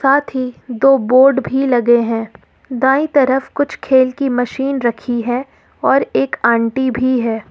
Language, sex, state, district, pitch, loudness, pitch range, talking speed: Hindi, female, Jharkhand, Ranchi, 260 Hz, -15 LUFS, 240-270 Hz, 160 wpm